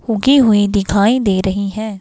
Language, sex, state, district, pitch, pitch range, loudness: Hindi, female, Himachal Pradesh, Shimla, 205 Hz, 200-225 Hz, -14 LUFS